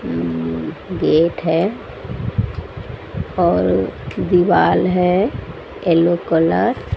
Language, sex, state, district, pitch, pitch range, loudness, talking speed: Hindi, female, Odisha, Sambalpur, 170 Hz, 160-180 Hz, -18 LUFS, 70 wpm